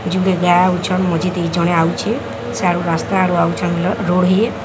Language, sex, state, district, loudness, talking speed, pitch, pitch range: Odia, female, Odisha, Sambalpur, -16 LUFS, 105 wpm, 180 Hz, 170-185 Hz